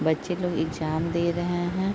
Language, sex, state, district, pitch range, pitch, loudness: Hindi, female, Uttar Pradesh, Deoria, 160-175 Hz, 170 Hz, -27 LUFS